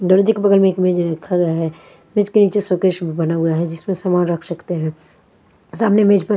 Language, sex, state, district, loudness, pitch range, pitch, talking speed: Hindi, female, Punjab, Fazilka, -17 LUFS, 165-200 Hz, 180 Hz, 235 wpm